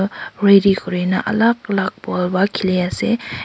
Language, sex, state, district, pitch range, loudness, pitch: Nagamese, female, Nagaland, Kohima, 185-225 Hz, -17 LUFS, 195 Hz